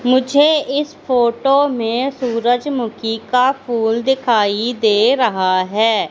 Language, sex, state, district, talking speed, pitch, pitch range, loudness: Hindi, female, Madhya Pradesh, Katni, 110 wpm, 245 Hz, 225-265 Hz, -16 LUFS